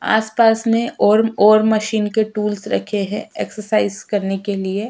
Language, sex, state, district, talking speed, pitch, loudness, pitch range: Hindi, female, Uttarakhand, Tehri Garhwal, 160 wpm, 215 Hz, -17 LUFS, 205-220 Hz